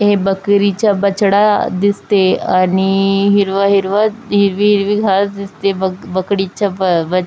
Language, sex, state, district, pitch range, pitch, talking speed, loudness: Marathi, female, Maharashtra, Chandrapur, 190-205 Hz, 200 Hz, 125 wpm, -14 LUFS